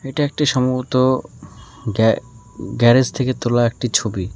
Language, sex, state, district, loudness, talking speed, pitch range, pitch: Bengali, male, West Bengal, Alipurduar, -18 LUFS, 125 wpm, 110-130 Hz, 125 Hz